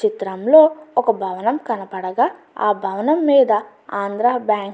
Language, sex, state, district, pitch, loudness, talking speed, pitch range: Telugu, female, Andhra Pradesh, Anantapur, 220 Hz, -18 LUFS, 140 wpm, 200-275 Hz